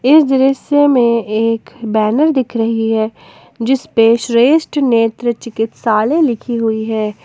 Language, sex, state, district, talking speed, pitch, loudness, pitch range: Hindi, female, Jharkhand, Ranchi, 130 wpm, 230 Hz, -14 LUFS, 225-265 Hz